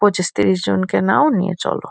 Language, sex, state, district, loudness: Bengali, female, West Bengal, Kolkata, -17 LUFS